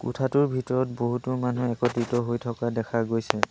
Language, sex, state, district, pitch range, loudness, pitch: Assamese, male, Assam, Sonitpur, 120-125 Hz, -26 LUFS, 120 Hz